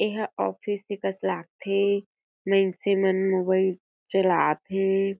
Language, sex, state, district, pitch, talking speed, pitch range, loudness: Chhattisgarhi, female, Chhattisgarh, Jashpur, 195 Hz, 115 wpm, 185-200 Hz, -25 LUFS